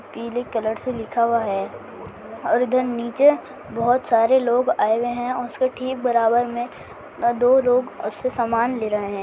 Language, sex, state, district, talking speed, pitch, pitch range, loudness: Hindi, female, Maharashtra, Chandrapur, 170 wpm, 240 Hz, 230-255 Hz, -21 LUFS